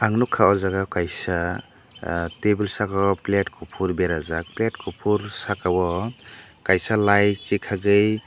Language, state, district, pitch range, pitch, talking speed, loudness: Kokborok, Tripura, Dhalai, 90-105 Hz, 100 Hz, 130 wpm, -22 LUFS